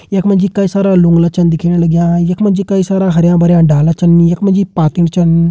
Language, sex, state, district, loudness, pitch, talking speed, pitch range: Hindi, male, Uttarakhand, Uttarkashi, -11 LUFS, 175 Hz, 240 wpm, 170-195 Hz